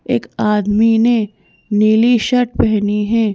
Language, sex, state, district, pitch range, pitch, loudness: Hindi, female, Madhya Pradesh, Bhopal, 210-235 Hz, 220 Hz, -14 LUFS